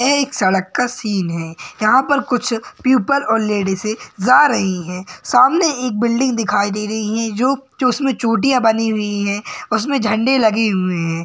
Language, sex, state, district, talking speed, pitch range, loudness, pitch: Hindi, male, Uttar Pradesh, Gorakhpur, 185 wpm, 205-255 Hz, -17 LUFS, 225 Hz